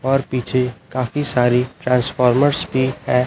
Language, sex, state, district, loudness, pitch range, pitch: Hindi, male, Chhattisgarh, Raipur, -17 LUFS, 125-135 Hz, 130 Hz